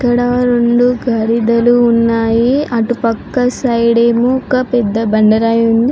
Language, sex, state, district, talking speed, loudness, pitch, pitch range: Telugu, female, Andhra Pradesh, Srikakulam, 130 wpm, -12 LUFS, 235 Hz, 230-245 Hz